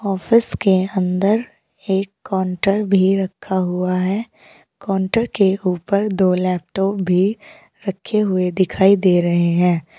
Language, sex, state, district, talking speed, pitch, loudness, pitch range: Hindi, female, Uttar Pradesh, Saharanpur, 125 wpm, 190 Hz, -18 LUFS, 185-200 Hz